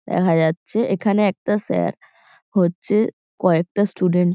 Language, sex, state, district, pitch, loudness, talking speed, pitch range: Bengali, female, West Bengal, Kolkata, 185 Hz, -20 LUFS, 125 wpm, 175-205 Hz